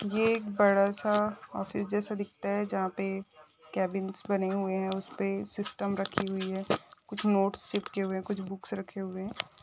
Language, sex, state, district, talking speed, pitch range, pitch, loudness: Hindi, female, Chhattisgarh, Bilaspur, 180 wpm, 190-205 Hz, 200 Hz, -32 LUFS